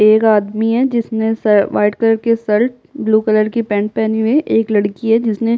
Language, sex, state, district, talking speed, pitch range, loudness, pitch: Hindi, female, Bihar, Kishanganj, 215 wpm, 215-230 Hz, -15 LUFS, 220 Hz